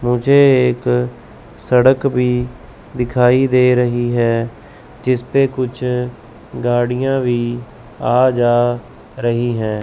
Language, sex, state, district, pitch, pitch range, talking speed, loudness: Hindi, male, Chandigarh, Chandigarh, 125 Hz, 120-125 Hz, 105 wpm, -16 LUFS